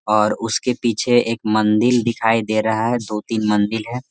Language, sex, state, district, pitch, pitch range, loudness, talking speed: Hindi, male, Bihar, Gaya, 110 Hz, 110-120 Hz, -18 LUFS, 175 wpm